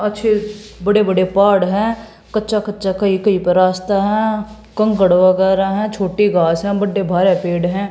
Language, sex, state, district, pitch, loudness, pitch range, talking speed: Hindi, female, Haryana, Jhajjar, 200 Hz, -16 LUFS, 185-210 Hz, 165 wpm